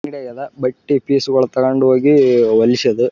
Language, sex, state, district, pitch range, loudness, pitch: Kannada, male, Karnataka, Raichur, 125-135 Hz, -14 LUFS, 130 Hz